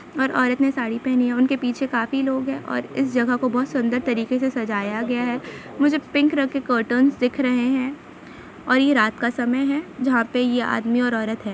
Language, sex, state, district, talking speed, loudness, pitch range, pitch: Hindi, female, Jharkhand, Sahebganj, 230 wpm, -21 LUFS, 240-270 Hz, 250 Hz